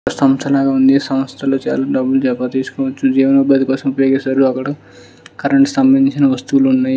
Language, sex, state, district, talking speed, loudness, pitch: Telugu, male, Andhra Pradesh, Srikakulam, 140 wpm, -14 LUFS, 140 Hz